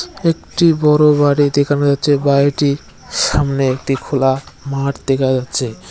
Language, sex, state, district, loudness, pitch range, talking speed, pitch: Bengali, male, West Bengal, Cooch Behar, -15 LUFS, 135-145 Hz, 120 wpm, 140 Hz